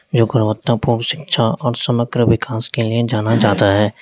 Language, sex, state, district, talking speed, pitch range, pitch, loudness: Hindi, male, Uttar Pradesh, Lalitpur, 180 wpm, 110-120 Hz, 115 Hz, -16 LUFS